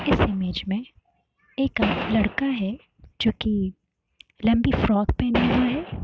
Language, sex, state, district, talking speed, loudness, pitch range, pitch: Hindi, female, Uttar Pradesh, Varanasi, 130 wpm, -24 LUFS, 200-250 Hz, 220 Hz